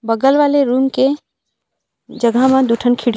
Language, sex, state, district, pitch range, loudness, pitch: Chhattisgarhi, female, Chhattisgarh, Rajnandgaon, 240-270 Hz, -14 LUFS, 260 Hz